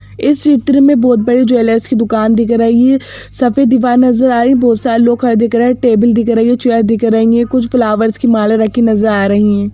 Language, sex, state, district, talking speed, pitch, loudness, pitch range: Hindi, female, Madhya Pradesh, Bhopal, 250 wpm, 235 Hz, -11 LUFS, 225-250 Hz